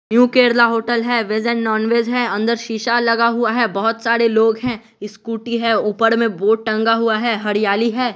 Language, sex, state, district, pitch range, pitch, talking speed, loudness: Hindi, male, Bihar, West Champaran, 220-235 Hz, 230 Hz, 200 wpm, -17 LUFS